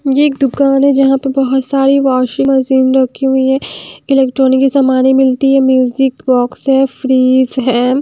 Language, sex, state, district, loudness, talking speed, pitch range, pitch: Hindi, female, Haryana, Jhajjar, -11 LUFS, 170 wpm, 260-270 Hz, 265 Hz